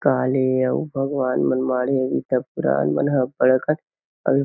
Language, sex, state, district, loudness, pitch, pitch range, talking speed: Chhattisgarhi, male, Chhattisgarh, Kabirdham, -21 LUFS, 130 Hz, 130-135 Hz, 190 wpm